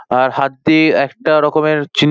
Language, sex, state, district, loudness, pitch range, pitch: Bengali, male, West Bengal, Paschim Medinipur, -14 LUFS, 140-155 Hz, 150 Hz